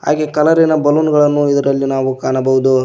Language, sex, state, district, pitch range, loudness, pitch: Kannada, male, Karnataka, Koppal, 130-150 Hz, -13 LUFS, 145 Hz